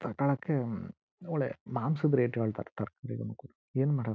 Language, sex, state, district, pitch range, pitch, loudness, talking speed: Kannada, male, Karnataka, Chamarajanagar, 115-140 Hz, 125 Hz, -33 LUFS, 130 wpm